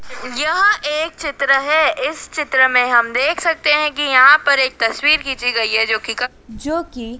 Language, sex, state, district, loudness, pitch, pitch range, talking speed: Hindi, female, Madhya Pradesh, Dhar, -15 LUFS, 270 Hz, 245-305 Hz, 190 wpm